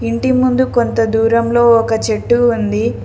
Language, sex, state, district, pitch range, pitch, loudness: Telugu, female, Telangana, Mahabubabad, 225-240 Hz, 230 Hz, -13 LUFS